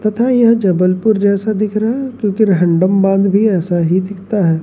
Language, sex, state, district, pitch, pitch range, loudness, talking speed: Hindi, male, Madhya Pradesh, Umaria, 200 Hz, 185-215 Hz, -14 LUFS, 195 wpm